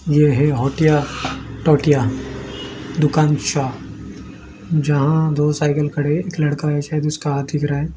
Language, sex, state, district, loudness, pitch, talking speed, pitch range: Hindi, male, Odisha, Malkangiri, -18 LUFS, 145 Hz, 145 wpm, 135-150 Hz